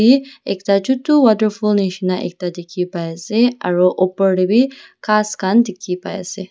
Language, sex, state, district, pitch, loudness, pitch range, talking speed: Nagamese, female, Nagaland, Dimapur, 200 Hz, -17 LUFS, 185-230 Hz, 130 wpm